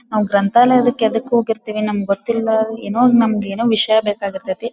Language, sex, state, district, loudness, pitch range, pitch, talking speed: Kannada, female, Karnataka, Dharwad, -16 LUFS, 210-235 Hz, 220 Hz, 140 wpm